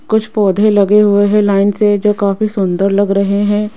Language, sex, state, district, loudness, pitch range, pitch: Hindi, female, Rajasthan, Jaipur, -12 LUFS, 200-210 Hz, 205 Hz